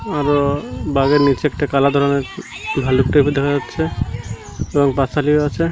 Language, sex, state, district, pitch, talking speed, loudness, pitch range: Bengali, male, Odisha, Malkangiri, 145 Hz, 135 wpm, -17 LUFS, 140-145 Hz